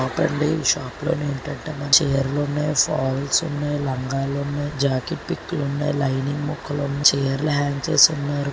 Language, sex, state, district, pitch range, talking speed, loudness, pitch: Telugu, male, Telangana, Nalgonda, 140-150 Hz, 135 wpm, -21 LUFS, 145 Hz